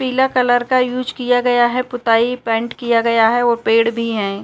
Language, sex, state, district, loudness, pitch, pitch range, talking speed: Hindi, female, Uttar Pradesh, Muzaffarnagar, -16 LUFS, 240 Hz, 230-250 Hz, 215 wpm